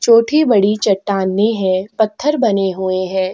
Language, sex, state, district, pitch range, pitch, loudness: Hindi, female, Chhattisgarh, Sukma, 190-225 Hz, 205 Hz, -15 LUFS